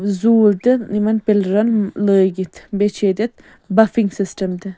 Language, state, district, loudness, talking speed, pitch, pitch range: Kashmiri, Punjab, Kapurthala, -17 LUFS, 140 wpm, 205 Hz, 195-220 Hz